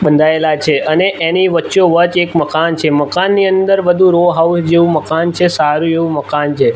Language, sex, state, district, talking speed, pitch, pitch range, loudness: Gujarati, male, Gujarat, Gandhinagar, 185 wpm, 170 Hz, 155-180 Hz, -12 LUFS